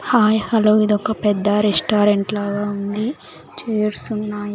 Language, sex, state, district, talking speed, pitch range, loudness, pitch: Telugu, female, Andhra Pradesh, Sri Satya Sai, 120 wpm, 205-215 Hz, -18 LUFS, 210 Hz